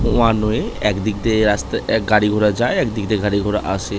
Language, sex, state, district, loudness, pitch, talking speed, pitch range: Bengali, male, West Bengal, North 24 Parganas, -18 LUFS, 105 Hz, 210 wpm, 105-110 Hz